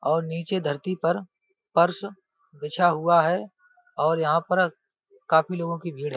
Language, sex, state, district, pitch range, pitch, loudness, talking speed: Hindi, male, Uttar Pradesh, Budaun, 160-190 Hz, 170 Hz, -24 LUFS, 155 wpm